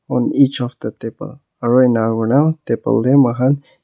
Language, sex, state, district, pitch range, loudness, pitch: Nagamese, male, Nagaland, Kohima, 115-140 Hz, -16 LUFS, 125 Hz